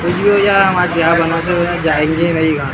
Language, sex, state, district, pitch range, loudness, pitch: Hindi, male, Maharashtra, Gondia, 160-180 Hz, -13 LUFS, 170 Hz